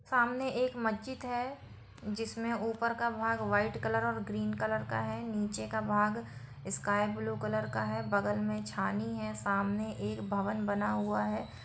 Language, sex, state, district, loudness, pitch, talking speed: Hindi, female, Bihar, Saran, -34 LUFS, 200 Hz, 175 wpm